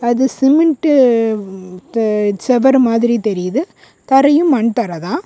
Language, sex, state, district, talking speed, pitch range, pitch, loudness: Tamil, female, Tamil Nadu, Kanyakumari, 100 wpm, 210-270 Hz, 235 Hz, -14 LUFS